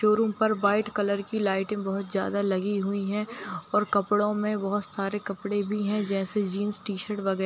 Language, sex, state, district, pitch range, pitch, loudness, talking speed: Hindi, female, Bihar, Darbhanga, 200-210 Hz, 205 Hz, -27 LUFS, 195 wpm